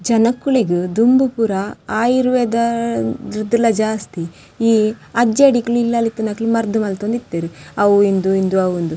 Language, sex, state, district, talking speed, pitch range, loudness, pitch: Tulu, female, Karnataka, Dakshina Kannada, 115 wpm, 195-235 Hz, -17 LUFS, 220 Hz